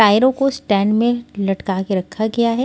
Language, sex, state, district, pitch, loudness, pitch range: Hindi, female, Maharashtra, Washim, 220 Hz, -18 LUFS, 195-240 Hz